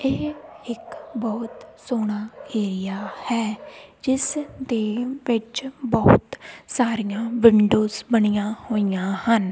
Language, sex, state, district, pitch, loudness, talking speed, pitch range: Punjabi, female, Punjab, Kapurthala, 230 Hz, -22 LUFS, 90 wpm, 215-265 Hz